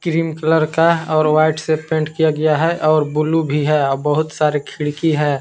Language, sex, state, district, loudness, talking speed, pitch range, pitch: Hindi, male, Jharkhand, Palamu, -17 LUFS, 210 wpm, 150-160 Hz, 155 Hz